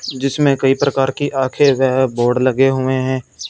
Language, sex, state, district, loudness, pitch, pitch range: Hindi, male, Punjab, Fazilka, -16 LUFS, 135 Hz, 130-135 Hz